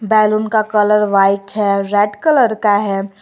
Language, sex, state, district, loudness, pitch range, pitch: Hindi, female, Jharkhand, Garhwa, -14 LUFS, 200-215 Hz, 210 Hz